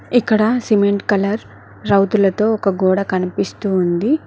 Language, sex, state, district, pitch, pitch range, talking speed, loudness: Telugu, female, Telangana, Mahabubabad, 200 Hz, 195-220 Hz, 100 wpm, -17 LUFS